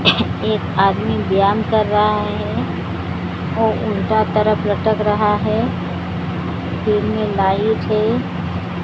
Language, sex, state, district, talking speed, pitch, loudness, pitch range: Hindi, female, Odisha, Sambalpur, 100 wpm, 210 Hz, -18 LUFS, 175-215 Hz